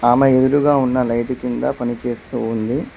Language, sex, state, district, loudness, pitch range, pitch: Telugu, male, Telangana, Mahabubabad, -18 LUFS, 120-130 Hz, 125 Hz